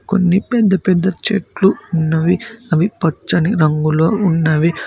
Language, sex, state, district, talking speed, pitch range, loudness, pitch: Telugu, male, Telangana, Mahabubabad, 110 wpm, 160-200 Hz, -15 LUFS, 180 Hz